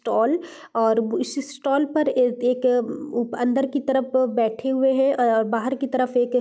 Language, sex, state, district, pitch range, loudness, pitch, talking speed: Hindi, female, Bihar, Gopalganj, 240-275 Hz, -22 LUFS, 255 Hz, 170 wpm